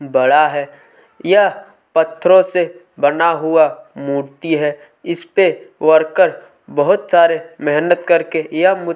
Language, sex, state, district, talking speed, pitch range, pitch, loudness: Hindi, male, Chhattisgarh, Kabirdham, 100 wpm, 150-170 Hz, 160 Hz, -15 LUFS